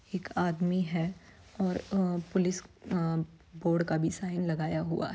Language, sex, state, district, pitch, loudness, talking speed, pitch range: Hindi, female, Bihar, Saran, 175 Hz, -32 LUFS, 165 wpm, 165-185 Hz